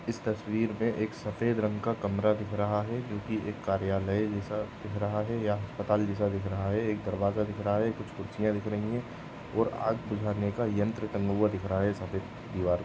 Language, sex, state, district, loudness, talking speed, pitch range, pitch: Hindi, male, West Bengal, Kolkata, -31 LUFS, 220 wpm, 100-110 Hz, 105 Hz